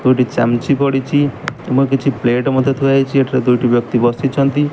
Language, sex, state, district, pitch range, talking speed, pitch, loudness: Odia, male, Odisha, Malkangiri, 125-140 Hz, 175 wpm, 135 Hz, -15 LUFS